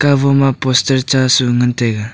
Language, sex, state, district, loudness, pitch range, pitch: Wancho, male, Arunachal Pradesh, Longding, -13 LUFS, 125-135 Hz, 130 Hz